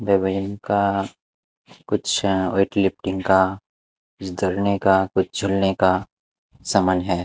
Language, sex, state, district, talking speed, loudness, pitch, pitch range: Hindi, male, Maharashtra, Mumbai Suburban, 100 wpm, -21 LUFS, 95 Hz, 95-100 Hz